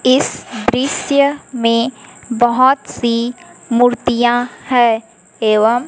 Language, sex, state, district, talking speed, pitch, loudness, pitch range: Hindi, female, Chhattisgarh, Raipur, 80 wpm, 245 Hz, -15 LUFS, 230-260 Hz